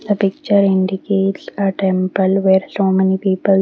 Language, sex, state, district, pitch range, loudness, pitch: English, female, Haryana, Rohtak, 190-195 Hz, -16 LUFS, 195 Hz